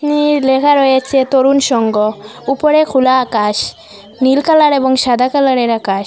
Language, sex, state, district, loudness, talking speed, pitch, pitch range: Bengali, female, Assam, Hailakandi, -12 LUFS, 140 wpm, 265 Hz, 230-280 Hz